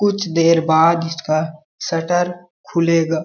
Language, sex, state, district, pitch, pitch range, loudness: Hindi, male, Chhattisgarh, Balrampur, 165 Hz, 165-175 Hz, -17 LUFS